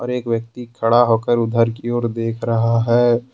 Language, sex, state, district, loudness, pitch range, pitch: Hindi, male, Jharkhand, Ranchi, -18 LUFS, 115-120 Hz, 115 Hz